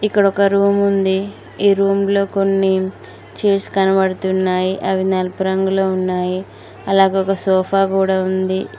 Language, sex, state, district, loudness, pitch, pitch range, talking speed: Telugu, female, Telangana, Mahabubabad, -17 LUFS, 195 Hz, 190-195 Hz, 125 wpm